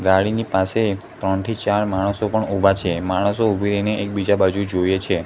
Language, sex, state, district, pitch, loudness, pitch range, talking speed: Gujarati, male, Gujarat, Gandhinagar, 100 Hz, -20 LUFS, 95-105 Hz, 185 wpm